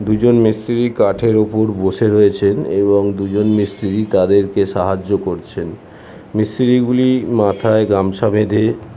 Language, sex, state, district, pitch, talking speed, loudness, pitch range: Bengali, male, West Bengal, Jhargram, 105 Hz, 115 wpm, -15 LUFS, 100-110 Hz